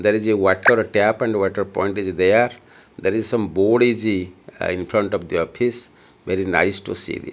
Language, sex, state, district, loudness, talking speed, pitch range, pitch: English, male, Odisha, Malkangiri, -20 LUFS, 220 wpm, 100-120 Hz, 110 Hz